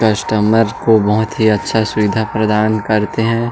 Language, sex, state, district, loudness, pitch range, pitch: Hindi, male, Chhattisgarh, Jashpur, -14 LUFS, 105-115 Hz, 110 Hz